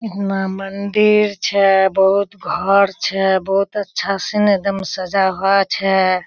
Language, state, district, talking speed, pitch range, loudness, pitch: Surjapuri, Bihar, Kishanganj, 125 wpm, 190-200 Hz, -16 LUFS, 195 Hz